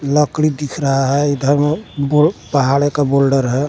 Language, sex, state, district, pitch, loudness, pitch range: Hindi, male, Jharkhand, Garhwa, 145 Hz, -16 LUFS, 140-150 Hz